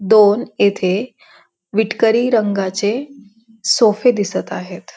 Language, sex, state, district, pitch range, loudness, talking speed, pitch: Marathi, female, Maharashtra, Pune, 200-230 Hz, -16 LUFS, 85 wpm, 215 Hz